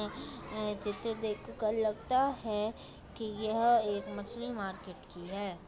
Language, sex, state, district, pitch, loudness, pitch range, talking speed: Hindi, female, Uttar Pradesh, Deoria, 215 Hz, -34 LUFS, 205-225 Hz, 135 wpm